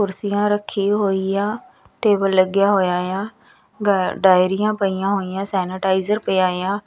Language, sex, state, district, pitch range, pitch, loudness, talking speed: Punjabi, female, Punjab, Kapurthala, 190-205 Hz, 195 Hz, -19 LUFS, 130 wpm